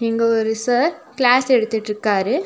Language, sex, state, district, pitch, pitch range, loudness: Tamil, female, Tamil Nadu, Nilgiris, 230 Hz, 220-250 Hz, -18 LUFS